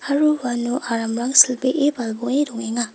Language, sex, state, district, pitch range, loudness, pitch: Garo, female, Meghalaya, West Garo Hills, 235-280 Hz, -19 LUFS, 250 Hz